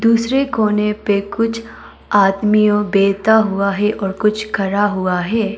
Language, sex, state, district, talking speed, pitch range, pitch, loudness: Hindi, female, Arunachal Pradesh, Papum Pare, 140 wpm, 200-220 Hz, 210 Hz, -16 LUFS